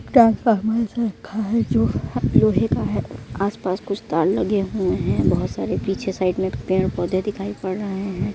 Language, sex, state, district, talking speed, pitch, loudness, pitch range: Hindi, female, Uttar Pradesh, Etah, 180 wpm, 195 Hz, -21 LUFS, 185-210 Hz